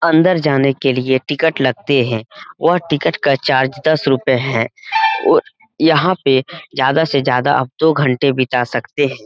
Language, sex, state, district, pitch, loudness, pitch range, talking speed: Hindi, male, Jharkhand, Jamtara, 140 Hz, -15 LUFS, 130-160 Hz, 160 wpm